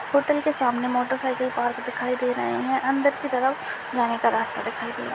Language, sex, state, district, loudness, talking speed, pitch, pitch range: Hindi, female, Chhattisgarh, Jashpur, -25 LUFS, 245 wpm, 255 Hz, 245-270 Hz